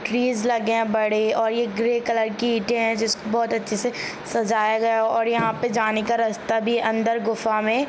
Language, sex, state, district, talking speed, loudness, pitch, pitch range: Hindi, female, Jharkhand, Jamtara, 205 wpm, -22 LUFS, 225 Hz, 220-235 Hz